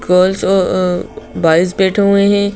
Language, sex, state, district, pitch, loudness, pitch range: Hindi, female, Madhya Pradesh, Bhopal, 190 Hz, -13 LUFS, 180-200 Hz